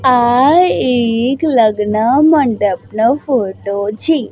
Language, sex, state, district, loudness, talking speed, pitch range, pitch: Gujarati, female, Gujarat, Gandhinagar, -13 LUFS, 95 wpm, 215-275 Hz, 240 Hz